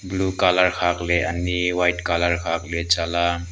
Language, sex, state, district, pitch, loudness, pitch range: Wancho, male, Arunachal Pradesh, Longding, 85 Hz, -21 LUFS, 85-90 Hz